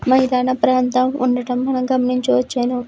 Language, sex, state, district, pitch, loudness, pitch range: Telugu, female, Andhra Pradesh, Visakhapatnam, 255 Hz, -18 LUFS, 250-255 Hz